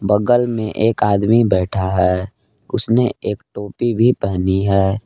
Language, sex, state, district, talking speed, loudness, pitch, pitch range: Hindi, male, Jharkhand, Palamu, 145 wpm, -17 LUFS, 105 Hz, 95-115 Hz